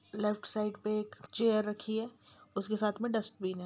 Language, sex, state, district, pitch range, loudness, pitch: Hindi, male, Bihar, Sitamarhi, 205-220 Hz, -34 LUFS, 210 Hz